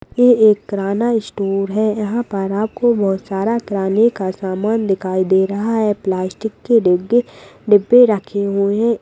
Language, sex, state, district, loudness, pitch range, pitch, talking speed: Hindi, female, Bihar, Purnia, -16 LUFS, 195-225 Hz, 205 Hz, 160 wpm